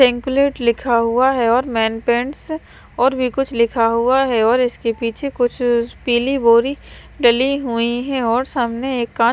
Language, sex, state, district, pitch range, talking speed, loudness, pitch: Hindi, female, Maharashtra, Washim, 235-260 Hz, 165 wpm, -17 LUFS, 245 Hz